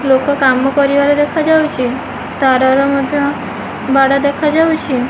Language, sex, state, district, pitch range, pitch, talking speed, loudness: Odia, female, Odisha, Khordha, 265-290 Hz, 280 Hz, 105 wpm, -13 LUFS